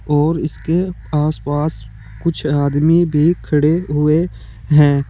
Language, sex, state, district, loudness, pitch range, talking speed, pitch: Hindi, male, Uttar Pradesh, Saharanpur, -16 LUFS, 145-160 Hz, 105 wpm, 150 Hz